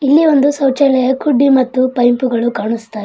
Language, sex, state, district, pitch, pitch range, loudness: Kannada, male, Karnataka, Bidar, 260 Hz, 240-280 Hz, -13 LUFS